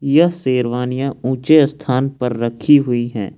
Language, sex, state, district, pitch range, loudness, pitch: Hindi, male, Jharkhand, Ranchi, 120-145 Hz, -16 LUFS, 130 Hz